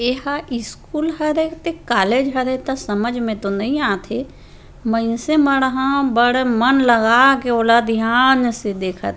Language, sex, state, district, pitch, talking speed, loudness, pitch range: Chhattisgarhi, female, Chhattisgarh, Rajnandgaon, 245 Hz, 155 wpm, -17 LUFS, 230-270 Hz